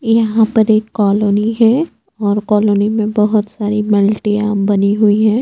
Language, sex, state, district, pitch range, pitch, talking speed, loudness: Hindi, female, Chhattisgarh, Bastar, 205-220 Hz, 210 Hz, 155 wpm, -14 LUFS